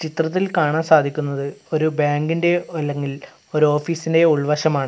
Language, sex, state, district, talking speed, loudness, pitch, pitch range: Malayalam, male, Kerala, Kasaragod, 125 wpm, -19 LUFS, 155 Hz, 150-165 Hz